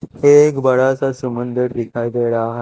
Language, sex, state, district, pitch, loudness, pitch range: Hindi, male, Punjab, Kapurthala, 125 Hz, -16 LUFS, 120-135 Hz